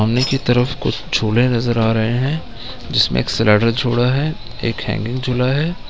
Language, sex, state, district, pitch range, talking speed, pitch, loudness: Hindi, male, Bihar, Gaya, 115-130 Hz, 185 wpm, 120 Hz, -17 LUFS